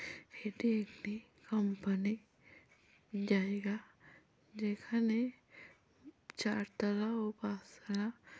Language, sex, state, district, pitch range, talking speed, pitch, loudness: Bengali, female, West Bengal, Kolkata, 205-225 Hz, 55 wpm, 210 Hz, -38 LUFS